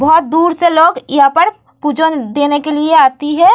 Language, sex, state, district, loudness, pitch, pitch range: Hindi, female, Bihar, Vaishali, -11 LUFS, 310 Hz, 295-335 Hz